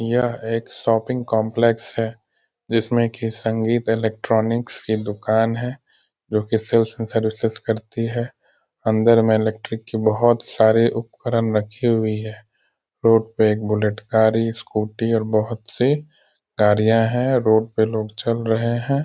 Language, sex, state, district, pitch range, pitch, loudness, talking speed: Hindi, male, Bihar, Sitamarhi, 110-115 Hz, 115 Hz, -20 LUFS, 165 wpm